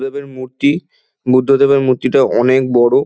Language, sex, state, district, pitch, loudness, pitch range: Bengali, male, West Bengal, Dakshin Dinajpur, 130 Hz, -13 LUFS, 130-140 Hz